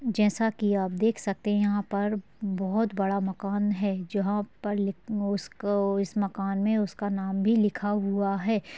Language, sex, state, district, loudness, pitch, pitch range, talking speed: Hindi, female, Chhattisgarh, Balrampur, -28 LUFS, 205 Hz, 195-210 Hz, 170 wpm